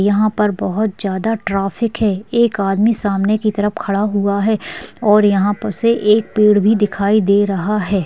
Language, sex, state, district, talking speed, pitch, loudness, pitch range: Hindi, female, West Bengal, Dakshin Dinajpur, 195 wpm, 210 Hz, -16 LUFS, 200-215 Hz